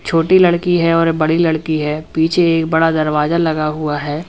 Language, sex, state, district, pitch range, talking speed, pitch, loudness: Hindi, male, Uttar Pradesh, Lalitpur, 155-165 Hz, 195 wpm, 160 Hz, -15 LUFS